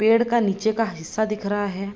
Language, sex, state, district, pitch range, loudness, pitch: Hindi, female, Bihar, Begusarai, 200-220 Hz, -23 LUFS, 215 Hz